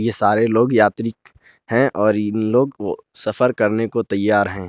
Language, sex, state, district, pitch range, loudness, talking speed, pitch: Hindi, male, Jharkhand, Garhwa, 105-120 Hz, -18 LUFS, 165 wpm, 110 Hz